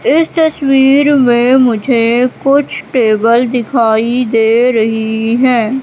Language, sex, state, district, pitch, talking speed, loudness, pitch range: Hindi, female, Madhya Pradesh, Katni, 245 Hz, 105 wpm, -11 LUFS, 230-270 Hz